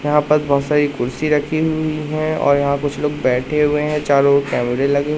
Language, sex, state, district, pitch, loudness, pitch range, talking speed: Hindi, male, Madhya Pradesh, Katni, 145 Hz, -17 LUFS, 140-150 Hz, 220 wpm